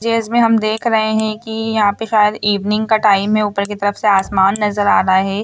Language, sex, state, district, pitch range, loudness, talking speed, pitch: Hindi, female, Bihar, Gopalganj, 205-220 Hz, -15 LUFS, 255 wpm, 210 Hz